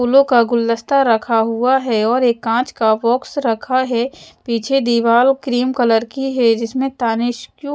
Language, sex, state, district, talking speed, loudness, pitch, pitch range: Hindi, female, Chhattisgarh, Raipur, 170 wpm, -16 LUFS, 240 Hz, 230-265 Hz